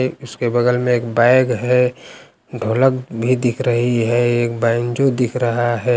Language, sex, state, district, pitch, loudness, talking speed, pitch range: Hindi, male, Uttar Pradesh, Lucknow, 120 Hz, -17 LUFS, 170 wpm, 120-125 Hz